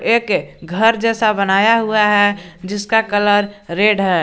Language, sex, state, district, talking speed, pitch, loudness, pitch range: Hindi, male, Jharkhand, Garhwa, 140 wpm, 205 Hz, -15 LUFS, 195-220 Hz